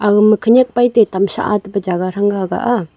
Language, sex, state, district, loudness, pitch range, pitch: Wancho, female, Arunachal Pradesh, Longding, -14 LUFS, 195-230 Hz, 205 Hz